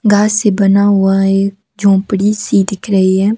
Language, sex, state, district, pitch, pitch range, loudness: Hindi, female, Himachal Pradesh, Shimla, 200 Hz, 195-205 Hz, -12 LUFS